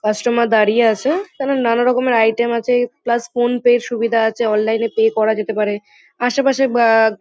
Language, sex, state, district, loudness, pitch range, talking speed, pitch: Bengali, female, West Bengal, Kolkata, -16 LUFS, 220-245 Hz, 165 wpm, 235 Hz